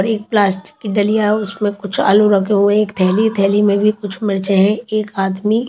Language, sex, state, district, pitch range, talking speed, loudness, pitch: Hindi, female, Chhattisgarh, Raipur, 200-215 Hz, 190 wpm, -15 LUFS, 205 Hz